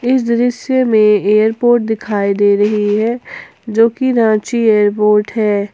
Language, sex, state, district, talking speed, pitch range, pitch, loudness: Hindi, female, Jharkhand, Ranchi, 135 wpm, 210-240 Hz, 220 Hz, -13 LUFS